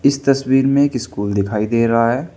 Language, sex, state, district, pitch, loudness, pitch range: Hindi, male, Uttar Pradesh, Saharanpur, 125 Hz, -16 LUFS, 115-135 Hz